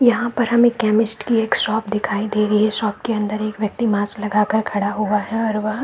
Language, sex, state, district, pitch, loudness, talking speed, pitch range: Hindi, female, Bihar, Saran, 215 Hz, -19 LUFS, 255 wpm, 210-225 Hz